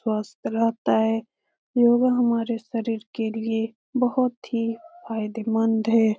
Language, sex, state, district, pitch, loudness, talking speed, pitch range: Hindi, female, Bihar, Lakhisarai, 225 Hz, -24 LUFS, 135 wpm, 225-240 Hz